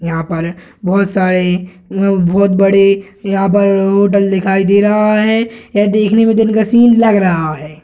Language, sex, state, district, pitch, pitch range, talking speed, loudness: Hindi, male, Bihar, Gaya, 195 Hz, 185-210 Hz, 170 wpm, -12 LUFS